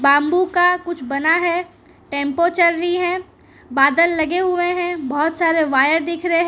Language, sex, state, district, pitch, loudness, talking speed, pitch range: Hindi, female, Gujarat, Valsad, 340 Hz, -17 LUFS, 175 wpm, 305-355 Hz